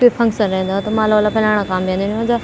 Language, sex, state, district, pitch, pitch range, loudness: Garhwali, female, Uttarakhand, Tehri Garhwal, 215 Hz, 195-225 Hz, -16 LUFS